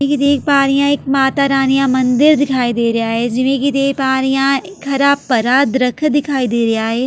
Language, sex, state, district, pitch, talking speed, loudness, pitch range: Punjabi, female, Delhi, New Delhi, 270 Hz, 245 wpm, -14 LUFS, 250-280 Hz